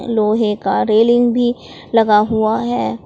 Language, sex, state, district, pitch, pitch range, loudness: Hindi, female, Jharkhand, Palamu, 220 Hz, 210-240 Hz, -15 LUFS